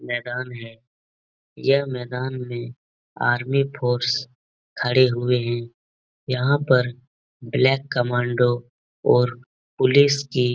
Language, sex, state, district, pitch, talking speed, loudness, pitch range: Hindi, male, Uttar Pradesh, Etah, 125 Hz, 100 wpm, -22 LUFS, 120-130 Hz